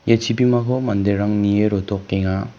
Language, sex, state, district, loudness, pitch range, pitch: Garo, male, Meghalaya, West Garo Hills, -19 LUFS, 100-115 Hz, 105 Hz